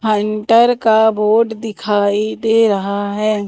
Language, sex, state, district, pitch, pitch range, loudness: Hindi, female, Madhya Pradesh, Umaria, 215 Hz, 205-225 Hz, -15 LUFS